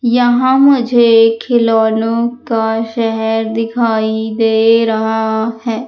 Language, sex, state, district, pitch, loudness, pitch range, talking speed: Hindi, female, Madhya Pradesh, Umaria, 225 Hz, -13 LUFS, 220-235 Hz, 90 wpm